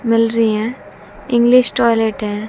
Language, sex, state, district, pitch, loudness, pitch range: Hindi, female, Haryana, Jhajjar, 230 Hz, -15 LUFS, 215-235 Hz